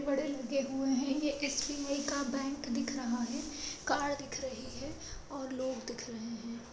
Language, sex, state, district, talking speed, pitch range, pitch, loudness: Hindi, female, Bihar, Madhepura, 205 wpm, 255-280 Hz, 270 Hz, -36 LUFS